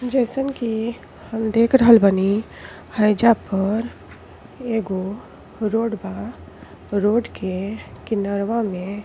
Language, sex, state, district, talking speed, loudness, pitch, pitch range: Bhojpuri, female, Uttar Pradesh, Ghazipur, 105 wpm, -20 LUFS, 220 Hz, 200-230 Hz